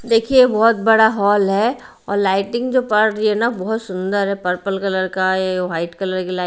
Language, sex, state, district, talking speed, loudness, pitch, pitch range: Hindi, female, Bihar, Patna, 220 wpm, -17 LUFS, 200 Hz, 190-225 Hz